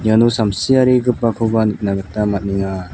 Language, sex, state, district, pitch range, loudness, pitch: Garo, male, Meghalaya, South Garo Hills, 100-115 Hz, -16 LUFS, 110 Hz